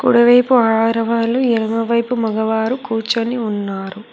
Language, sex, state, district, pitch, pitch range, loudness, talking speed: Telugu, female, Telangana, Hyderabad, 230 Hz, 220-240 Hz, -16 LUFS, 100 wpm